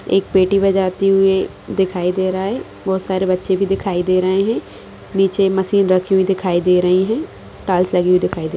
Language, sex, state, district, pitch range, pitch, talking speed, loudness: Hindi, female, Bihar, Madhepura, 185-195 Hz, 190 Hz, 210 wpm, -17 LUFS